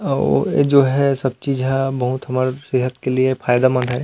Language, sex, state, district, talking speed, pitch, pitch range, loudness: Chhattisgarhi, male, Chhattisgarh, Rajnandgaon, 220 wpm, 130 Hz, 125-135 Hz, -18 LUFS